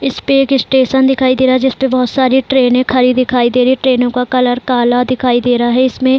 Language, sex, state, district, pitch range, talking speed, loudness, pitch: Hindi, female, Bihar, Saran, 250-265 Hz, 270 wpm, -12 LUFS, 255 Hz